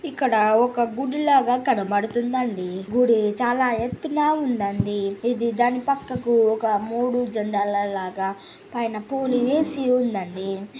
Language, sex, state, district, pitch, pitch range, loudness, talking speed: Telugu, male, Andhra Pradesh, Chittoor, 240 Hz, 205-255 Hz, -22 LUFS, 130 wpm